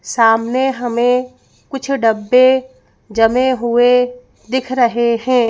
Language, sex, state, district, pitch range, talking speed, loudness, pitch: Hindi, female, Madhya Pradesh, Bhopal, 230-255 Hz, 100 wpm, -15 LUFS, 245 Hz